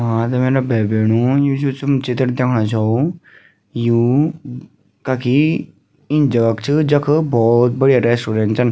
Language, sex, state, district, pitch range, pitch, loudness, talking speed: Garhwali, female, Uttarakhand, Tehri Garhwal, 115-140 Hz, 125 Hz, -16 LUFS, 150 wpm